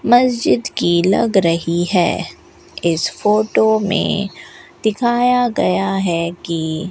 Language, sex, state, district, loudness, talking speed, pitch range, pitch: Hindi, female, Rajasthan, Bikaner, -16 LUFS, 115 wpm, 170-220 Hz, 195 Hz